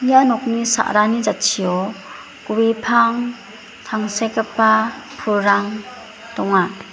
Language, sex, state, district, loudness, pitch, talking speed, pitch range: Garo, female, Meghalaya, West Garo Hills, -18 LUFS, 220 Hz, 80 wpm, 205-235 Hz